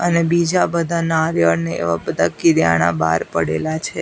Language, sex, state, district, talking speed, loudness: Gujarati, female, Gujarat, Gandhinagar, 165 wpm, -17 LUFS